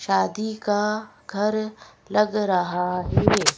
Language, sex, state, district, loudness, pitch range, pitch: Hindi, female, Madhya Pradesh, Bhopal, -23 LUFS, 180-215 Hz, 210 Hz